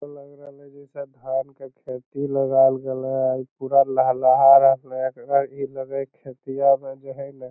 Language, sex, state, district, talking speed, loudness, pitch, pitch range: Magahi, male, Bihar, Lakhisarai, 160 wpm, -20 LUFS, 135 Hz, 130-140 Hz